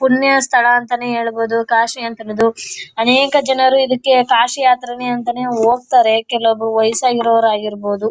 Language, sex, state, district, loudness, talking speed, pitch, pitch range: Kannada, female, Karnataka, Chamarajanagar, -14 LUFS, 110 wpm, 240 Hz, 225-255 Hz